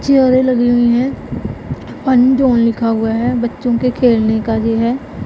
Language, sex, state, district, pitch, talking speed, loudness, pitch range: Hindi, female, Punjab, Pathankot, 240 Hz, 150 wpm, -14 LUFS, 230-255 Hz